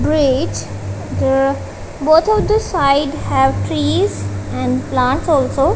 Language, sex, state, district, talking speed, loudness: English, female, Punjab, Kapurthala, 115 wpm, -16 LUFS